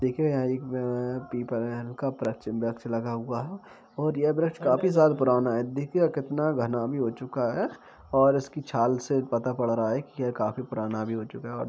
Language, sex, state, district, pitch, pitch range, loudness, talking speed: Hindi, male, Uttar Pradesh, Jalaun, 125 Hz, 120-140 Hz, -28 LUFS, 205 wpm